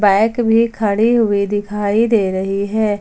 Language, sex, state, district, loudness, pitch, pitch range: Hindi, female, Jharkhand, Ranchi, -16 LUFS, 210 Hz, 200-225 Hz